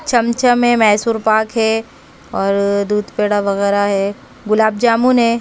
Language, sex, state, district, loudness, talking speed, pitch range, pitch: Hindi, female, Haryana, Rohtak, -15 LUFS, 145 wpm, 205-235 Hz, 220 Hz